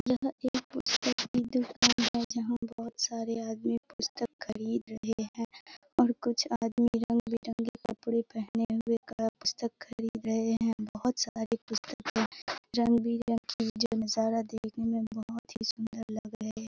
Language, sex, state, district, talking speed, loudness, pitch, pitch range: Hindi, female, Bihar, Purnia, 140 wpm, -32 LUFS, 230 Hz, 225-235 Hz